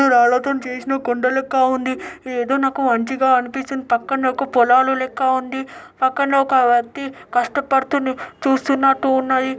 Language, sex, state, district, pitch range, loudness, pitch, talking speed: Telugu, male, Telangana, Nalgonda, 255-270 Hz, -18 LUFS, 265 Hz, 125 wpm